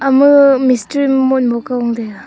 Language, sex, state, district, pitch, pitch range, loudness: Wancho, female, Arunachal Pradesh, Longding, 260 Hz, 240-275 Hz, -12 LUFS